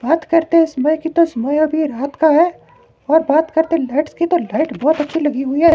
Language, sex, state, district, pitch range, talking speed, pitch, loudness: Hindi, male, Himachal Pradesh, Shimla, 295-325 Hz, 240 wpm, 310 Hz, -16 LUFS